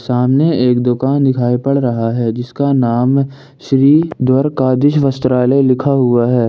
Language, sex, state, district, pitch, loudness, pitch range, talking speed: Hindi, male, Jharkhand, Ranchi, 130 Hz, -13 LUFS, 125-140 Hz, 150 wpm